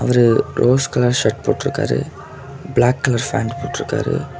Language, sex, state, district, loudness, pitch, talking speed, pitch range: Tamil, male, Tamil Nadu, Kanyakumari, -18 LUFS, 125 Hz, 125 wpm, 120-140 Hz